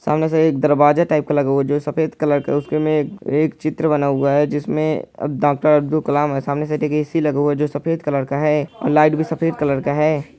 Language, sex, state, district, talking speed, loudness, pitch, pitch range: Hindi, male, Bihar, Araria, 245 wpm, -18 LUFS, 150 Hz, 145-155 Hz